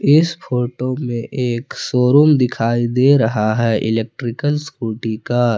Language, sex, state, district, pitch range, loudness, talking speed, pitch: Hindi, male, Jharkhand, Palamu, 115-135 Hz, -17 LUFS, 130 wpm, 125 Hz